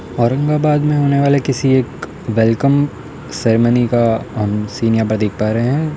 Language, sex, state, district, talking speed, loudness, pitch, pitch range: Hindi, male, Uttar Pradesh, Hamirpur, 170 wpm, -15 LUFS, 125 Hz, 115-145 Hz